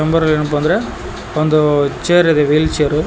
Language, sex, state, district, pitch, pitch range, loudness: Kannada, male, Karnataka, Koppal, 155 Hz, 150-160 Hz, -14 LUFS